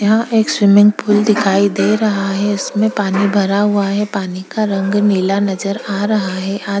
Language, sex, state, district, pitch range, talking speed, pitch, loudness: Hindi, female, Chhattisgarh, Korba, 195-210 Hz, 200 wpm, 200 Hz, -15 LUFS